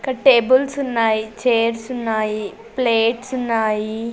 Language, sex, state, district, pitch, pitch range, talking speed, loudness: Telugu, female, Andhra Pradesh, Sri Satya Sai, 230 Hz, 220-255 Hz, 70 wpm, -19 LUFS